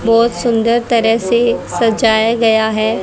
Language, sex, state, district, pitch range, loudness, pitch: Hindi, female, Haryana, Rohtak, 220-235 Hz, -13 LUFS, 230 Hz